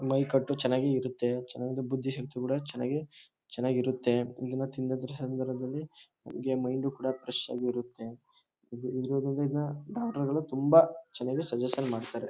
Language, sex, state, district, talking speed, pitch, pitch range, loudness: Kannada, male, Karnataka, Chamarajanagar, 115 wpm, 130 Hz, 125-140 Hz, -31 LUFS